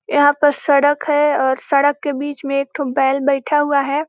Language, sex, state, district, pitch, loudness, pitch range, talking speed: Hindi, female, Chhattisgarh, Balrampur, 285 Hz, -16 LUFS, 275-290 Hz, 220 wpm